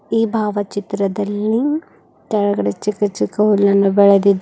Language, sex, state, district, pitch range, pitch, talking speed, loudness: Kannada, female, Karnataka, Bidar, 200-210 Hz, 205 Hz, 120 wpm, -17 LUFS